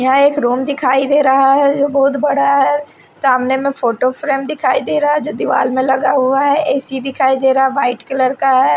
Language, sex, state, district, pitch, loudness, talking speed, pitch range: Hindi, female, Odisha, Sambalpur, 270 Hz, -14 LUFS, 225 wpm, 265-280 Hz